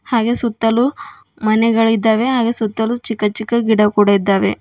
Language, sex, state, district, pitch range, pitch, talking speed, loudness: Kannada, female, Karnataka, Bidar, 215-235 Hz, 225 Hz, 115 wpm, -16 LUFS